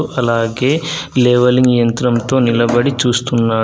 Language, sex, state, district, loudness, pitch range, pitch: Telugu, male, Telangana, Adilabad, -14 LUFS, 120-130 Hz, 125 Hz